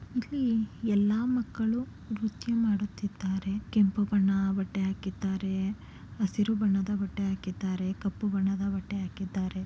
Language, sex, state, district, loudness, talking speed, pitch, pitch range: Kannada, female, Karnataka, Chamarajanagar, -30 LUFS, 105 wpm, 200 Hz, 195-215 Hz